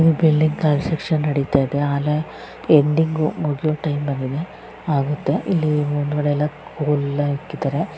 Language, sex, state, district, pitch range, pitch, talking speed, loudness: Kannada, female, Karnataka, Raichur, 145-155 Hz, 150 Hz, 115 wpm, -20 LUFS